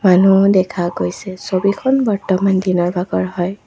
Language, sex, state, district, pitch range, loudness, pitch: Assamese, female, Assam, Kamrup Metropolitan, 175-195 Hz, -16 LUFS, 190 Hz